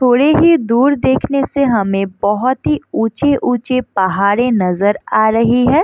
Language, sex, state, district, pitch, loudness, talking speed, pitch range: Hindi, female, Bihar, Madhepura, 245 Hz, -14 LUFS, 145 wpm, 205-270 Hz